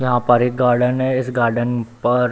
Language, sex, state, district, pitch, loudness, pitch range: Hindi, male, Bihar, Darbhanga, 125 Hz, -17 LUFS, 120-125 Hz